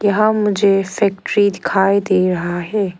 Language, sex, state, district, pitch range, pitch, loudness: Hindi, female, Arunachal Pradesh, Lower Dibang Valley, 185-205 Hz, 200 Hz, -16 LUFS